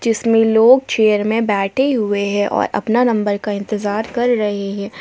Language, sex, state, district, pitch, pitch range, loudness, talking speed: Hindi, female, Jharkhand, Palamu, 215 Hz, 205-230 Hz, -16 LUFS, 180 wpm